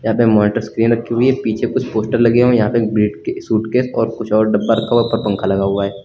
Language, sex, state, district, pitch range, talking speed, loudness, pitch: Hindi, male, Uttar Pradesh, Lucknow, 105-120 Hz, 300 wpm, -16 LUFS, 115 Hz